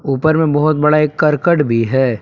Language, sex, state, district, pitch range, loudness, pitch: Hindi, male, Jharkhand, Palamu, 130-155 Hz, -14 LUFS, 150 Hz